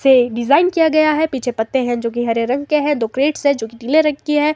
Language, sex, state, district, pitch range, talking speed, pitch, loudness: Hindi, female, Himachal Pradesh, Shimla, 240-300 Hz, 275 wpm, 275 Hz, -16 LUFS